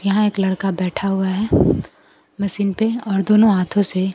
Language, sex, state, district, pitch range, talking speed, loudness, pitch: Hindi, female, Bihar, Kaimur, 190-210 Hz, 175 wpm, -18 LUFS, 195 Hz